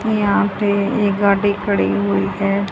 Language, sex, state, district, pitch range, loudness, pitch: Hindi, female, Haryana, Charkhi Dadri, 195-205 Hz, -17 LUFS, 200 Hz